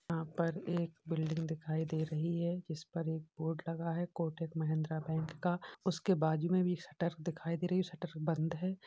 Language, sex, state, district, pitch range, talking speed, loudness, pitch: Hindi, male, Uttar Pradesh, Varanasi, 160-175 Hz, 195 wpm, -37 LUFS, 165 Hz